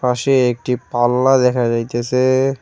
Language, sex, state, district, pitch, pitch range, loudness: Bengali, male, West Bengal, Cooch Behar, 125 Hz, 120-130 Hz, -16 LUFS